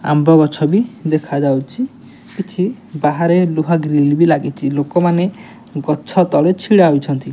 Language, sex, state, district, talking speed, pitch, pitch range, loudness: Odia, male, Odisha, Nuapada, 130 wpm, 170 Hz, 150-195 Hz, -15 LUFS